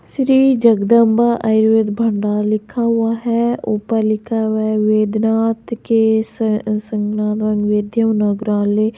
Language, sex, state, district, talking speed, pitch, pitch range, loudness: Hindi, female, Rajasthan, Jaipur, 85 wpm, 220 Hz, 215-230 Hz, -16 LUFS